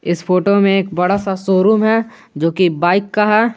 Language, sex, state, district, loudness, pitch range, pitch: Hindi, male, Jharkhand, Garhwa, -15 LUFS, 180-210 Hz, 195 Hz